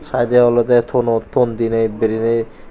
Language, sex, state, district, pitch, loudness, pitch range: Chakma, male, Tripura, Unakoti, 115 Hz, -16 LUFS, 115-120 Hz